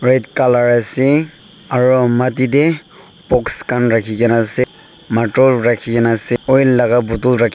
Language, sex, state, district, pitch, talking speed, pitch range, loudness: Nagamese, male, Nagaland, Dimapur, 125 Hz, 150 wpm, 120-135 Hz, -14 LUFS